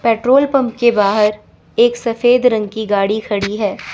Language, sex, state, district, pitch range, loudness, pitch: Hindi, female, Chandigarh, Chandigarh, 210-240 Hz, -15 LUFS, 220 Hz